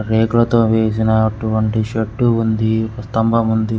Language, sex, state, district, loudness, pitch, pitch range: Telugu, male, Andhra Pradesh, Guntur, -16 LUFS, 110 Hz, 110-115 Hz